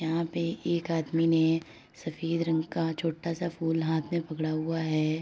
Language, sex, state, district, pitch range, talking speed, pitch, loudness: Hindi, female, Uttar Pradesh, Etah, 160-165 Hz, 185 wpm, 165 Hz, -29 LUFS